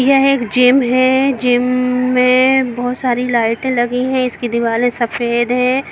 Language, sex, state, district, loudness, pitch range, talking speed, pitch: Hindi, female, Jharkhand, Jamtara, -14 LUFS, 240-260 Hz, 130 wpm, 250 Hz